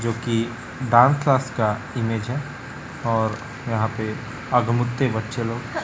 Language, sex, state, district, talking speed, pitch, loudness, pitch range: Hindi, male, Chhattisgarh, Raipur, 125 wpm, 120 Hz, -23 LUFS, 115-130 Hz